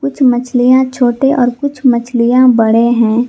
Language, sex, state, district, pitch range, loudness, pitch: Hindi, female, Jharkhand, Garhwa, 240-260 Hz, -11 LUFS, 245 Hz